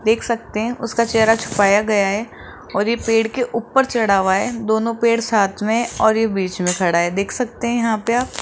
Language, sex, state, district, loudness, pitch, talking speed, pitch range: Hindi, male, Rajasthan, Jaipur, -18 LUFS, 225 Hz, 235 wpm, 205-235 Hz